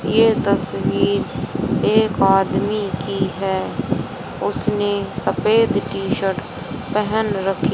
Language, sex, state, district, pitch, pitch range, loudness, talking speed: Hindi, female, Haryana, Rohtak, 200 Hz, 195-215 Hz, -20 LUFS, 95 wpm